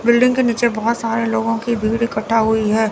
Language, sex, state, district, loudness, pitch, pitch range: Hindi, female, Chandigarh, Chandigarh, -17 LUFS, 225 Hz, 220-235 Hz